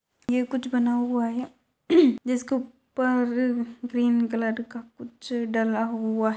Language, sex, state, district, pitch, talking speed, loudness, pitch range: Hindi, female, Maharashtra, Dhule, 245 Hz, 140 wpm, -25 LUFS, 235-255 Hz